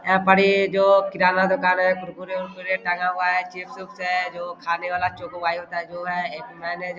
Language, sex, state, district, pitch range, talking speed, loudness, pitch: Hindi, male, Bihar, Vaishali, 175-185 Hz, 165 wpm, -22 LUFS, 180 Hz